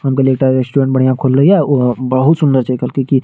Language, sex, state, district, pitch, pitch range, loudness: Maithili, male, Bihar, Madhepura, 130 Hz, 130-135 Hz, -13 LUFS